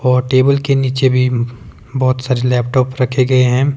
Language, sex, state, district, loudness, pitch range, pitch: Hindi, male, Himachal Pradesh, Shimla, -14 LUFS, 125-130 Hz, 130 Hz